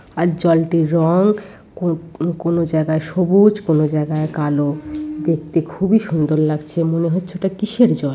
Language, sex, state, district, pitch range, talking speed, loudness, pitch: Bengali, female, West Bengal, North 24 Parganas, 155-180 Hz, 145 wpm, -18 LUFS, 165 Hz